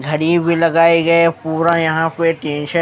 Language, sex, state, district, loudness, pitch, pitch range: Hindi, male, Maharashtra, Mumbai Suburban, -15 LUFS, 165 Hz, 160-170 Hz